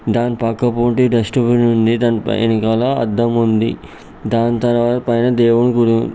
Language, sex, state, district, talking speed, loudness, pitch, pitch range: Telugu, male, Andhra Pradesh, Guntur, 145 wpm, -15 LUFS, 115 Hz, 115-120 Hz